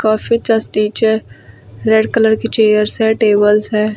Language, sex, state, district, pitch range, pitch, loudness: Hindi, female, Uttar Pradesh, Lucknow, 210-220 Hz, 220 Hz, -13 LUFS